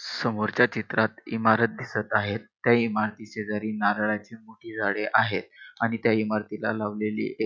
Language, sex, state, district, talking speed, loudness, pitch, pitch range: Marathi, male, Maharashtra, Pune, 130 wpm, -26 LUFS, 110 Hz, 105-115 Hz